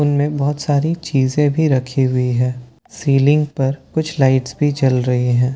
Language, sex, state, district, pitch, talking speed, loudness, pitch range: Hindi, male, Bihar, Katihar, 135 Hz, 175 wpm, -17 LUFS, 130-145 Hz